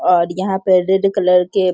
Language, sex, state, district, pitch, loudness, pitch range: Hindi, female, Bihar, Sitamarhi, 185 Hz, -15 LUFS, 180-195 Hz